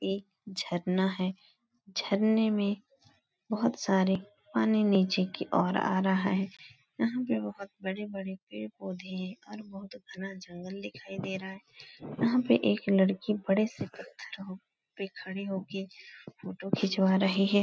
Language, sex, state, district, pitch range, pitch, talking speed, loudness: Hindi, female, Uttar Pradesh, Etah, 185-205 Hz, 195 Hz, 150 wpm, -31 LUFS